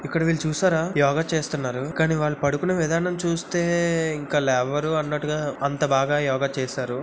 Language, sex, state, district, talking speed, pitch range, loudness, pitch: Telugu, male, Andhra Pradesh, Visakhapatnam, 145 wpm, 140-165 Hz, -23 LUFS, 150 Hz